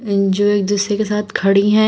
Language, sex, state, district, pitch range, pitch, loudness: Hindi, female, Uttar Pradesh, Shamli, 200-210 Hz, 205 Hz, -16 LUFS